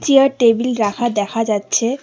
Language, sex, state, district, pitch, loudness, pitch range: Bengali, female, West Bengal, Alipurduar, 230 Hz, -16 LUFS, 210-250 Hz